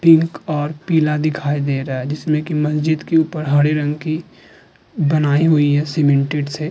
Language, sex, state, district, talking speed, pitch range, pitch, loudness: Hindi, female, Uttar Pradesh, Hamirpur, 180 wpm, 145-155 Hz, 150 Hz, -17 LUFS